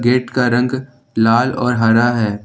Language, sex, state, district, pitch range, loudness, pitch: Hindi, male, Jharkhand, Ranchi, 115-125 Hz, -15 LUFS, 120 Hz